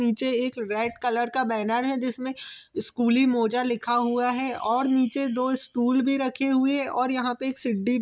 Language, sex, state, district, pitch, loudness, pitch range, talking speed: Hindi, male, Chhattisgarh, Bilaspur, 250 Hz, -25 LUFS, 240-265 Hz, 195 wpm